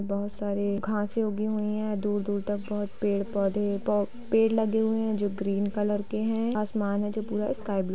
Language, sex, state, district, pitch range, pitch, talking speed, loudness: Hindi, female, Bihar, Gopalganj, 200-215 Hz, 210 Hz, 205 wpm, -28 LUFS